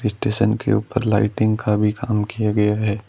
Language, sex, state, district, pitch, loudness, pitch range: Hindi, male, Rajasthan, Bikaner, 105 Hz, -20 LUFS, 105-110 Hz